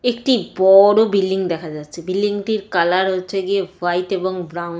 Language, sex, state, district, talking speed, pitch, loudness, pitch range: Bengali, female, West Bengal, Jalpaiguri, 175 wpm, 190 Hz, -17 LUFS, 175-200 Hz